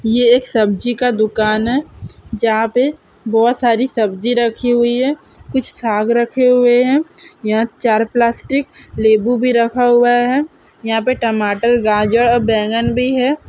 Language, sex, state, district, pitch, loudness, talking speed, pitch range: Hindi, female, Andhra Pradesh, Krishna, 240 Hz, -15 LUFS, 155 wpm, 225-250 Hz